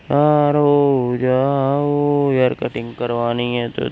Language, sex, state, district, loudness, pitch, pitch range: Hindi, male, Uttarakhand, Uttarkashi, -17 LUFS, 135 Hz, 120-145 Hz